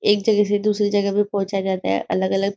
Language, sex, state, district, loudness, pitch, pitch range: Hindi, female, Maharashtra, Nagpur, -20 LUFS, 200 Hz, 195-205 Hz